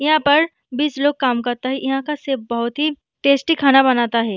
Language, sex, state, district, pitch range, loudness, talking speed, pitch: Hindi, female, Bihar, Gaya, 250-295 Hz, -18 LUFS, 235 wpm, 270 Hz